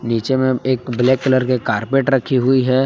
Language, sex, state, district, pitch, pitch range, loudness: Hindi, male, Jharkhand, Palamu, 130 Hz, 125-130 Hz, -17 LUFS